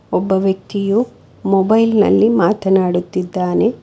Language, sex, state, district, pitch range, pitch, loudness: Kannada, female, Karnataka, Bangalore, 185-210 Hz, 195 Hz, -15 LUFS